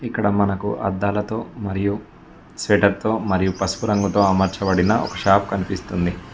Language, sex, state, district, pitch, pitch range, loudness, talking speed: Telugu, male, Telangana, Mahabubabad, 100 Hz, 95-105 Hz, -20 LUFS, 115 wpm